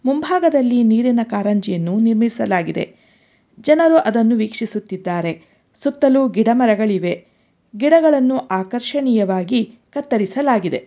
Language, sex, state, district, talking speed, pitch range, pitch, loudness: Kannada, female, Karnataka, Bangalore, 70 wpm, 210-275 Hz, 230 Hz, -17 LUFS